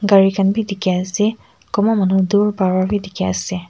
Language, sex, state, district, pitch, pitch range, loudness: Nagamese, female, Nagaland, Kohima, 195 Hz, 185-205 Hz, -17 LUFS